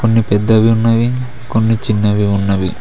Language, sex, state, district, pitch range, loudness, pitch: Telugu, male, Telangana, Mahabubabad, 105-115 Hz, -14 LUFS, 110 Hz